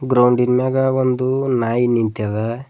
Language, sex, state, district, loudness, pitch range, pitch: Kannada, male, Karnataka, Bidar, -18 LUFS, 115-130 Hz, 125 Hz